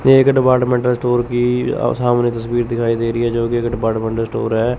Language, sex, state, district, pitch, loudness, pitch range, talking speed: Hindi, male, Chandigarh, Chandigarh, 120 Hz, -17 LUFS, 115-125 Hz, 215 wpm